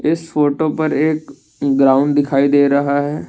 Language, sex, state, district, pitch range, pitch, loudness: Hindi, male, Assam, Kamrup Metropolitan, 140-155 Hz, 145 Hz, -15 LUFS